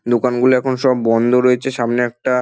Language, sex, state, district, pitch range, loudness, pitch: Bengali, male, West Bengal, Dakshin Dinajpur, 120-130 Hz, -16 LUFS, 125 Hz